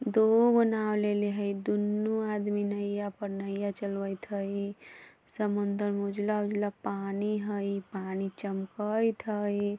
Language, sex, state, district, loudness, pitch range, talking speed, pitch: Bajjika, female, Bihar, Vaishali, -31 LUFS, 200-210 Hz, 130 wpm, 205 Hz